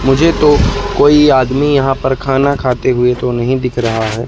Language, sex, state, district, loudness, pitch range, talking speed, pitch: Hindi, male, Madhya Pradesh, Katni, -12 LUFS, 125-140 Hz, 195 wpm, 130 Hz